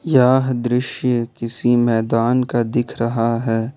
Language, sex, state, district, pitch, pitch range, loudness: Hindi, male, Jharkhand, Ranchi, 120 Hz, 115-125 Hz, -18 LUFS